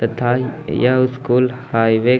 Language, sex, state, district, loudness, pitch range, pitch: Hindi, male, Bihar, Gaya, -17 LUFS, 120-130 Hz, 125 Hz